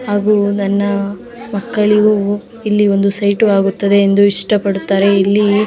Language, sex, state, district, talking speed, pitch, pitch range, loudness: Kannada, female, Karnataka, Dharwad, 125 wpm, 200 Hz, 200-210 Hz, -13 LUFS